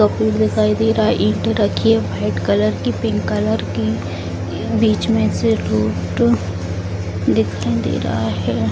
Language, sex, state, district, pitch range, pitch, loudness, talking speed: Hindi, female, Bihar, Jamui, 95-110 Hz, 105 Hz, -18 LUFS, 165 wpm